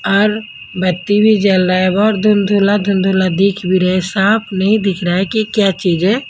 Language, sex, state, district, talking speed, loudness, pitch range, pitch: Hindi, female, Haryana, Jhajjar, 200 wpm, -14 LUFS, 185-210 Hz, 195 Hz